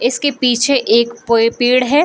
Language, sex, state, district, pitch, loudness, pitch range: Hindi, female, Bihar, Gopalganj, 245 Hz, -14 LUFS, 235-275 Hz